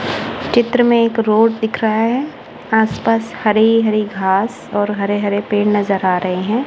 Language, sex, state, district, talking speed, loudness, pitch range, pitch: Hindi, female, Punjab, Kapurthala, 155 wpm, -16 LUFS, 205-230 Hz, 220 Hz